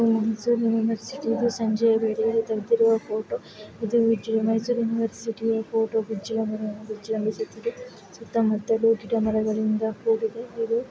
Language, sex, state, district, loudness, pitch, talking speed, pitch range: Kannada, female, Karnataka, Mysore, -25 LUFS, 225 Hz, 85 wpm, 220-230 Hz